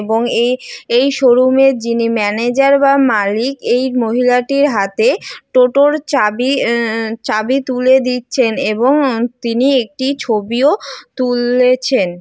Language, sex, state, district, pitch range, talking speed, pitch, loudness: Bengali, female, West Bengal, Jalpaiguri, 230-270 Hz, 120 wpm, 250 Hz, -14 LUFS